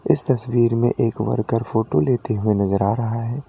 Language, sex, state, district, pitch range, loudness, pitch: Hindi, male, Uttar Pradesh, Lalitpur, 110-120 Hz, -19 LUFS, 115 Hz